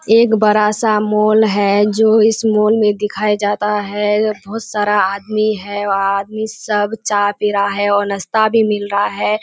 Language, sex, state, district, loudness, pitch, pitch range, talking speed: Hindi, female, Bihar, Kishanganj, -15 LUFS, 210 Hz, 205-215 Hz, 180 wpm